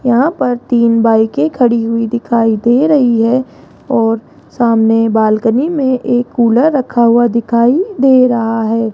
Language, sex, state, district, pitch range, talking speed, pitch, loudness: Hindi, female, Rajasthan, Jaipur, 225-255 Hz, 150 wpm, 235 Hz, -12 LUFS